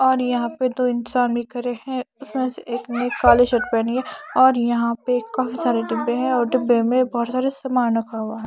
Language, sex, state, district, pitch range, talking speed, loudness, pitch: Hindi, female, Punjab, Kapurthala, 235-255 Hz, 225 wpm, -21 LUFS, 245 Hz